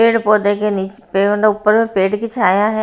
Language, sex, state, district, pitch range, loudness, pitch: Hindi, female, Haryana, Rohtak, 200-220 Hz, -15 LUFS, 210 Hz